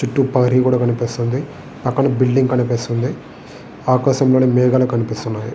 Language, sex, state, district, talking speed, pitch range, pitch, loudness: Telugu, male, Andhra Pradesh, Guntur, 110 wpm, 120-130 Hz, 125 Hz, -17 LUFS